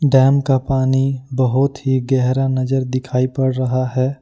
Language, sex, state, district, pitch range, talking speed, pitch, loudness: Hindi, male, Jharkhand, Ranchi, 130-135 Hz, 155 wpm, 130 Hz, -17 LUFS